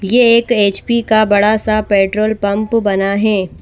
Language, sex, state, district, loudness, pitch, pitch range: Hindi, female, Madhya Pradesh, Bhopal, -13 LUFS, 215 Hz, 200-220 Hz